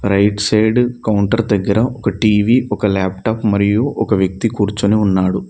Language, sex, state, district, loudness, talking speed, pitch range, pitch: Telugu, male, Telangana, Mahabubabad, -15 LUFS, 140 wpm, 100-115 Hz, 105 Hz